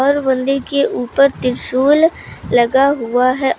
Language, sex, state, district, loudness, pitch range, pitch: Hindi, female, Uttar Pradesh, Lucknow, -15 LUFS, 250-280 Hz, 270 Hz